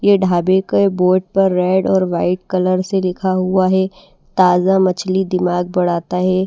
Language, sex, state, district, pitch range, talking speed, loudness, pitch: Hindi, female, Bihar, Patna, 180-190 Hz, 165 wpm, -16 LUFS, 185 Hz